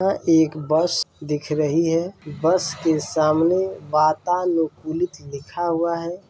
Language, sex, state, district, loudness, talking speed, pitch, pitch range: Hindi, male, Bihar, Saran, -21 LUFS, 125 wpm, 165 Hz, 155-175 Hz